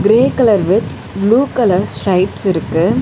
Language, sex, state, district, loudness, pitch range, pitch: Tamil, female, Tamil Nadu, Chennai, -14 LUFS, 185-230 Hz, 200 Hz